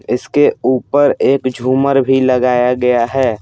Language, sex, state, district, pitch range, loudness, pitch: Hindi, male, Bihar, Patna, 125-135 Hz, -13 LUFS, 130 Hz